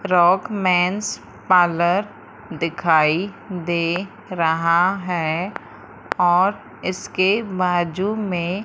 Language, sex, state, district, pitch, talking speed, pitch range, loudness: Hindi, female, Madhya Pradesh, Umaria, 180 Hz, 75 wpm, 170-195 Hz, -20 LUFS